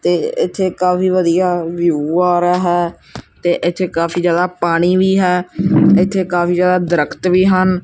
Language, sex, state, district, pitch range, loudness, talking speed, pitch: Punjabi, male, Punjab, Kapurthala, 175-185 Hz, -15 LUFS, 160 wpm, 180 Hz